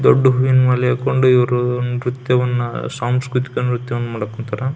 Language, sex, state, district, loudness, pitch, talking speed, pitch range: Kannada, male, Karnataka, Belgaum, -17 LUFS, 125 Hz, 115 wpm, 125-130 Hz